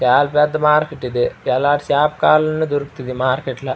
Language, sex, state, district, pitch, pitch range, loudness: Telugu, male, Andhra Pradesh, Srikakulam, 145 Hz, 130-150 Hz, -17 LUFS